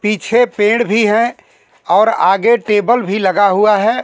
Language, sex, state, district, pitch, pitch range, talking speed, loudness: Hindi, male, Bihar, Kaimur, 215 Hz, 205-235 Hz, 165 wpm, -13 LUFS